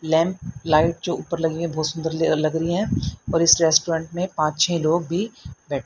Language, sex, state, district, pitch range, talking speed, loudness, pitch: Hindi, female, Haryana, Rohtak, 160-170 Hz, 215 wpm, -21 LUFS, 165 Hz